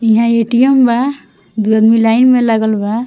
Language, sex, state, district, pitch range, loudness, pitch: Bhojpuri, female, Bihar, Muzaffarpur, 220-245 Hz, -11 LUFS, 230 Hz